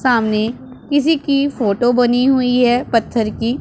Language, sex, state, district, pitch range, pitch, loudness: Hindi, female, Punjab, Pathankot, 230-265 Hz, 245 Hz, -16 LUFS